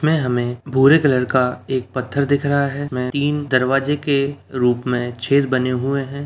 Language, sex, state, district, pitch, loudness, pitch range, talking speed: Hindi, male, Bihar, Begusarai, 135 Hz, -19 LUFS, 125-140 Hz, 190 wpm